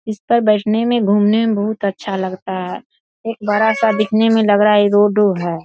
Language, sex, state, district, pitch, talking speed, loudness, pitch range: Hindi, female, Bihar, Saharsa, 210 Hz, 190 wpm, -15 LUFS, 205-220 Hz